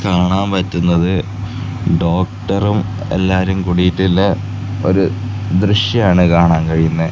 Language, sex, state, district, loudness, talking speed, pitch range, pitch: Malayalam, male, Kerala, Kasaragod, -15 LUFS, 75 wpm, 90-100 Hz, 95 Hz